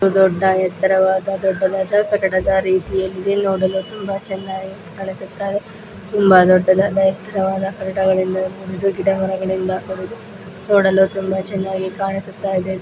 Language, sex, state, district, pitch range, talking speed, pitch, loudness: Kannada, female, Karnataka, Dakshina Kannada, 190-195 Hz, 100 wpm, 190 Hz, -18 LUFS